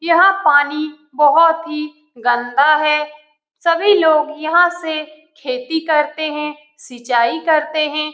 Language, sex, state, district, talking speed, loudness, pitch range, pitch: Hindi, female, Bihar, Lakhisarai, 120 wpm, -16 LUFS, 295-320 Hz, 305 Hz